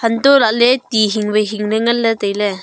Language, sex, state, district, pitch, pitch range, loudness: Wancho, female, Arunachal Pradesh, Longding, 220 Hz, 210-235 Hz, -14 LUFS